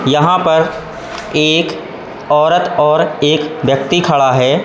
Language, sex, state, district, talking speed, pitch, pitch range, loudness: Hindi, male, Madhya Pradesh, Katni, 115 wpm, 155 Hz, 150-170 Hz, -12 LUFS